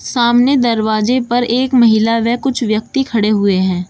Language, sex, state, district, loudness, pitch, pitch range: Hindi, female, Uttar Pradesh, Shamli, -14 LUFS, 235 Hz, 215-250 Hz